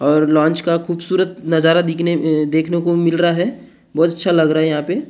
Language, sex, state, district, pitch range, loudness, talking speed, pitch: Hindi, male, Maharashtra, Gondia, 160-170 Hz, -16 LUFS, 210 wpm, 165 Hz